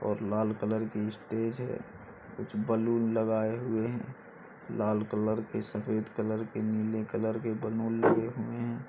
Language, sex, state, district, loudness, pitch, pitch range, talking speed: Hindi, male, Uttar Pradesh, Budaun, -32 LUFS, 110 Hz, 110-115 Hz, 160 wpm